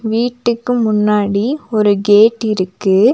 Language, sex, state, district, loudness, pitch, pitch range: Tamil, female, Tamil Nadu, Nilgiris, -14 LUFS, 215 Hz, 205-235 Hz